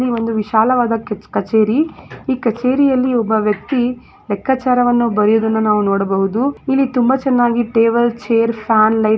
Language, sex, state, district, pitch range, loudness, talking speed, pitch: Kannada, female, Karnataka, Gulbarga, 220-255 Hz, -15 LUFS, 145 wpm, 230 Hz